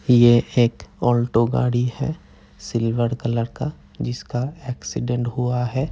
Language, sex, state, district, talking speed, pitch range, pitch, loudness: Hindi, male, Uttar Pradesh, Jyotiba Phule Nagar, 120 wpm, 120-125 Hz, 120 Hz, -22 LUFS